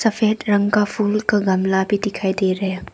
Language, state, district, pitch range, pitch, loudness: Hindi, Arunachal Pradesh, Papum Pare, 190-210 Hz, 205 Hz, -19 LUFS